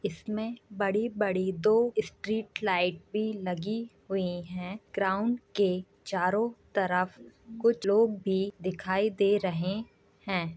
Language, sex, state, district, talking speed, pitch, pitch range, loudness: Hindi, female, Uttar Pradesh, Jyotiba Phule Nagar, 115 wpm, 200 Hz, 185-215 Hz, -30 LUFS